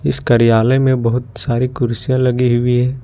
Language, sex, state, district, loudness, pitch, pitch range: Hindi, male, Jharkhand, Ranchi, -15 LUFS, 125 Hz, 120-130 Hz